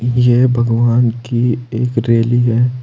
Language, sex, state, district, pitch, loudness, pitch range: Hindi, male, Uttar Pradesh, Saharanpur, 120 Hz, -14 LUFS, 115-125 Hz